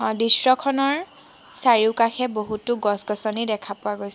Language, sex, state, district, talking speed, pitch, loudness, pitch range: Assamese, female, Assam, Sonitpur, 100 wpm, 225 Hz, -21 LUFS, 210-250 Hz